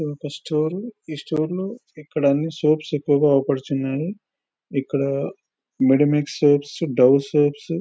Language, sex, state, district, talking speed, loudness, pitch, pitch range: Telugu, male, Telangana, Nalgonda, 140 wpm, -21 LUFS, 150 Hz, 140-160 Hz